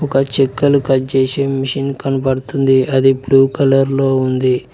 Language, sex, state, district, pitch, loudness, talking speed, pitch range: Telugu, male, Telangana, Mahabubabad, 135 Hz, -14 LUFS, 140 wpm, 130-135 Hz